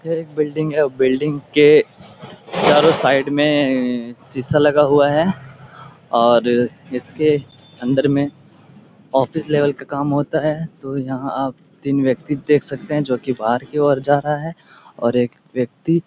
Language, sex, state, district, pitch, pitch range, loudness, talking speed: Hindi, male, Bihar, Jahanabad, 145 Hz, 135-150 Hz, -18 LUFS, 155 wpm